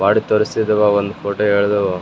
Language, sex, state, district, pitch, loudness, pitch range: Kannada, male, Karnataka, Raichur, 105 Hz, -16 LUFS, 100-105 Hz